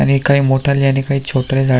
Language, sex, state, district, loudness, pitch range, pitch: Marathi, male, Maharashtra, Aurangabad, -15 LUFS, 135-140 Hz, 135 Hz